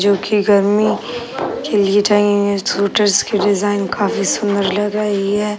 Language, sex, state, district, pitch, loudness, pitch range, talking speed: Hindi, male, Bihar, Sitamarhi, 205 Hz, -16 LUFS, 200-210 Hz, 150 wpm